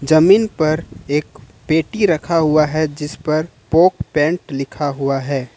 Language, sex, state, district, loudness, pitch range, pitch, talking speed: Hindi, male, Jharkhand, Ranchi, -17 LUFS, 140-160 Hz, 155 Hz, 150 wpm